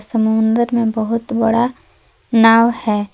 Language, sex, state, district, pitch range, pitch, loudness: Hindi, female, Jharkhand, Palamu, 220-235 Hz, 225 Hz, -15 LUFS